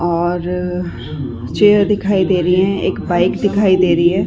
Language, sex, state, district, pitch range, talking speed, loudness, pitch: Hindi, female, Chhattisgarh, Rajnandgaon, 175-195 Hz, 170 wpm, -15 LUFS, 180 Hz